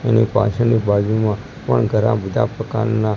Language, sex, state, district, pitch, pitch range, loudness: Gujarati, male, Gujarat, Gandhinagar, 110 Hz, 105-115 Hz, -18 LUFS